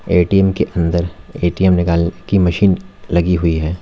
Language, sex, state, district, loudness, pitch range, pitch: Hindi, male, Uttar Pradesh, Lalitpur, -16 LUFS, 85-95 Hz, 90 Hz